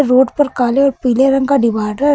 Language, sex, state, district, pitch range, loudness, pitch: Hindi, female, Uttar Pradesh, Lucknow, 245-280 Hz, -14 LUFS, 265 Hz